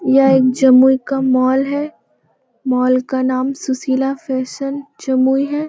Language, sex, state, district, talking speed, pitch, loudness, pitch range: Hindi, female, Bihar, Jamui, 135 wpm, 265 Hz, -15 LUFS, 255-270 Hz